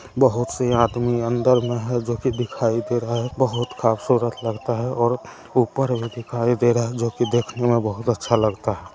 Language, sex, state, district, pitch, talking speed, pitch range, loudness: Maithili, male, Bihar, Samastipur, 120 Hz, 200 wpm, 115-125 Hz, -22 LUFS